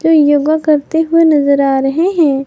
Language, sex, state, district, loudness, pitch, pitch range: Hindi, female, Jharkhand, Garhwa, -11 LUFS, 305 Hz, 280-320 Hz